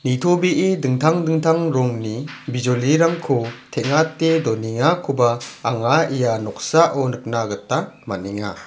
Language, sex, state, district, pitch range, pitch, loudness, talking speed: Garo, male, Meghalaya, South Garo Hills, 115-160 Hz, 130 Hz, -19 LUFS, 90 wpm